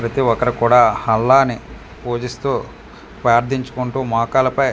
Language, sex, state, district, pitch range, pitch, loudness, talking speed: Telugu, male, Andhra Pradesh, Manyam, 115-130 Hz, 125 Hz, -17 LUFS, 125 wpm